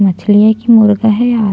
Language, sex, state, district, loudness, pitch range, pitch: Hindi, female, Chhattisgarh, Jashpur, -9 LUFS, 205-225 Hz, 215 Hz